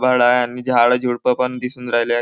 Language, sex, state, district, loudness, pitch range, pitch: Marathi, male, Maharashtra, Nagpur, -17 LUFS, 120-125 Hz, 125 Hz